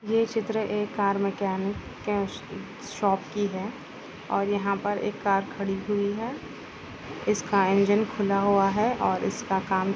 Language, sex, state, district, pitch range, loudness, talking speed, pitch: Hindi, female, Chhattisgarh, Balrampur, 195-210 Hz, -27 LUFS, 145 wpm, 200 Hz